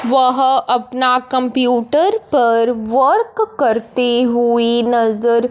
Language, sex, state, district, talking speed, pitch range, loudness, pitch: Hindi, female, Punjab, Fazilka, 85 wpm, 235-265 Hz, -14 LUFS, 245 Hz